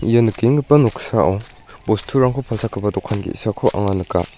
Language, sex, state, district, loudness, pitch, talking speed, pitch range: Garo, male, Meghalaya, North Garo Hills, -18 LUFS, 115 Hz, 125 wpm, 100-125 Hz